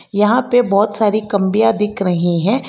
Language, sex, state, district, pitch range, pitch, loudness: Hindi, female, Karnataka, Bangalore, 200-225 Hz, 210 Hz, -15 LUFS